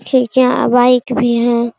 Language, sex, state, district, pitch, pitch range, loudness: Hindi, female, Bihar, Araria, 245 Hz, 240-255 Hz, -13 LUFS